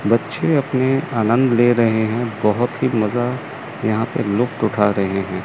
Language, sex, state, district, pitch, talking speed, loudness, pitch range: Hindi, male, Chandigarh, Chandigarh, 115 Hz, 165 wpm, -18 LUFS, 105-125 Hz